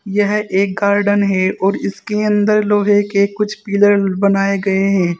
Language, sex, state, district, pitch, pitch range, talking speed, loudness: Hindi, female, Uttar Pradesh, Saharanpur, 200 Hz, 195-205 Hz, 160 wpm, -15 LUFS